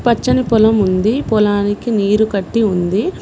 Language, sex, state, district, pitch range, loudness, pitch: Telugu, female, Telangana, Mahabubabad, 205-225 Hz, -14 LUFS, 215 Hz